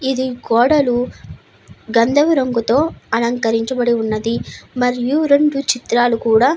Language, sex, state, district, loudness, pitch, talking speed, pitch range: Telugu, female, Andhra Pradesh, Anantapur, -16 LUFS, 245 Hz, 100 wpm, 230-270 Hz